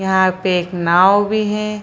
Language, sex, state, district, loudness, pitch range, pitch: Hindi, female, Bihar, Purnia, -15 LUFS, 180-210 Hz, 190 Hz